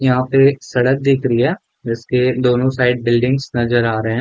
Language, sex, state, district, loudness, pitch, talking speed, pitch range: Hindi, male, Chhattisgarh, Bilaspur, -16 LUFS, 125 Hz, 200 wpm, 120-135 Hz